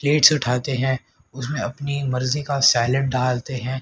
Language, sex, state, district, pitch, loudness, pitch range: Hindi, male, Haryana, Rohtak, 130 Hz, -21 LUFS, 125-140 Hz